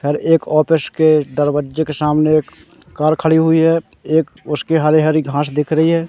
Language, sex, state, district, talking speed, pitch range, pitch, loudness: Hindi, male, Madhya Pradesh, Katni, 195 wpm, 150-160 Hz, 155 Hz, -15 LUFS